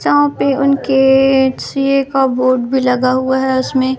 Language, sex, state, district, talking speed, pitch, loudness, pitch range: Hindi, female, Madhya Pradesh, Katni, 150 wpm, 265 Hz, -13 LUFS, 255-270 Hz